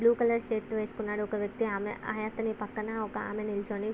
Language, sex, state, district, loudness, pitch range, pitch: Telugu, female, Andhra Pradesh, Visakhapatnam, -33 LUFS, 210-225 Hz, 215 Hz